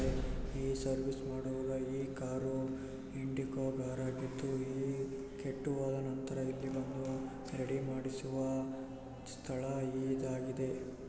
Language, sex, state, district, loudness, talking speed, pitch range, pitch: Kannada, male, Karnataka, Raichur, -40 LUFS, 80 wpm, 130-135 Hz, 130 Hz